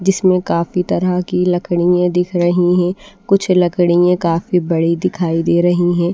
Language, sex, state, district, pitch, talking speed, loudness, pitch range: Hindi, female, Bihar, Patna, 180 Hz, 155 wpm, -15 LUFS, 175-180 Hz